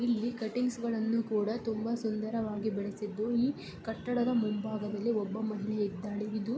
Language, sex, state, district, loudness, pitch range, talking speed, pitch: Kannada, female, Karnataka, Bijapur, -33 LUFS, 210-235 Hz, 120 wpm, 220 Hz